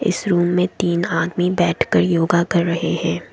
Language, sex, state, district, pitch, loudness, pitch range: Hindi, female, Assam, Kamrup Metropolitan, 175 Hz, -18 LUFS, 170-180 Hz